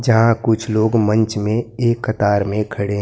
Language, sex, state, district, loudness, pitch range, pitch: Hindi, male, Maharashtra, Gondia, -17 LUFS, 105-115 Hz, 110 Hz